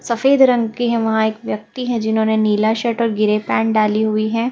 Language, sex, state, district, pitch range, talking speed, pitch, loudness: Hindi, female, Haryana, Jhajjar, 215-235 Hz, 225 wpm, 220 Hz, -17 LUFS